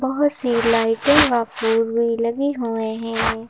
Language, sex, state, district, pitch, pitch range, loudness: Hindi, female, Madhya Pradesh, Bhopal, 230 Hz, 225-255 Hz, -19 LUFS